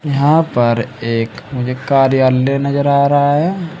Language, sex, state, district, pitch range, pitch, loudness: Hindi, male, Uttar Pradesh, Saharanpur, 125-145 Hz, 140 Hz, -14 LUFS